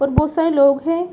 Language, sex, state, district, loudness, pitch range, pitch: Hindi, female, Bihar, Saran, -16 LUFS, 280-330 Hz, 325 Hz